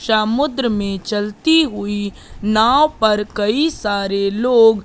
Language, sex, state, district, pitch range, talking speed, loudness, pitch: Hindi, female, Madhya Pradesh, Katni, 205-250 Hz, 110 wpm, -17 LUFS, 215 Hz